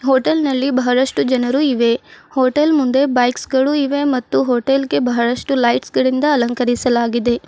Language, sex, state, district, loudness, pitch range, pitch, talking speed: Kannada, female, Karnataka, Bidar, -16 LUFS, 245-275 Hz, 260 Hz, 135 wpm